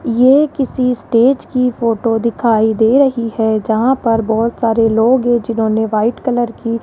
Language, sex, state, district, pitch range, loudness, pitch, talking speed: Hindi, female, Rajasthan, Jaipur, 225-250 Hz, -14 LUFS, 230 Hz, 175 wpm